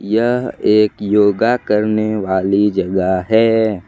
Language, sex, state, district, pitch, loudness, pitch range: Hindi, male, Jharkhand, Ranchi, 105 Hz, -15 LUFS, 100-110 Hz